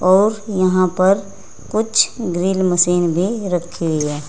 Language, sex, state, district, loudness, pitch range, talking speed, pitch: Hindi, female, Uttar Pradesh, Saharanpur, -17 LUFS, 175-200 Hz, 140 wpm, 185 Hz